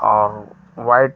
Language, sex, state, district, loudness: Hindi, male, Jharkhand, Ranchi, -17 LUFS